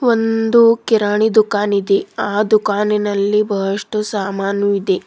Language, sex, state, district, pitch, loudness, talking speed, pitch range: Kannada, female, Karnataka, Bidar, 205 Hz, -16 LUFS, 105 wpm, 200-220 Hz